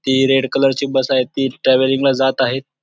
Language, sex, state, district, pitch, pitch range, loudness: Marathi, male, Maharashtra, Dhule, 135 Hz, 130-135 Hz, -16 LUFS